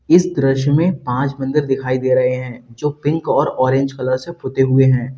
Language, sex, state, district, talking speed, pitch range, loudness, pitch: Hindi, male, Uttar Pradesh, Lalitpur, 210 wpm, 130-145 Hz, -17 LUFS, 135 Hz